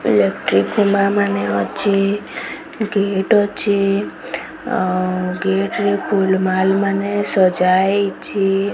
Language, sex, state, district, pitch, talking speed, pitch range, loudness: Odia, female, Odisha, Sambalpur, 195 Hz, 95 wpm, 190-205 Hz, -17 LUFS